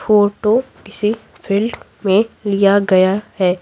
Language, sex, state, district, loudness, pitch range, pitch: Hindi, female, Bihar, Patna, -16 LUFS, 195-215 Hz, 205 Hz